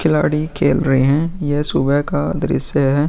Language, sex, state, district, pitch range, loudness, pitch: Hindi, male, Bihar, Vaishali, 140-155 Hz, -17 LUFS, 145 Hz